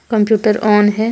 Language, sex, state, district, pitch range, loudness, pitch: Hindi, female, Jharkhand, Deoghar, 210-220 Hz, -13 LUFS, 215 Hz